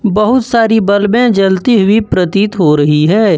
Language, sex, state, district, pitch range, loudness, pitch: Hindi, male, Jharkhand, Ranchi, 190-225 Hz, -10 LUFS, 205 Hz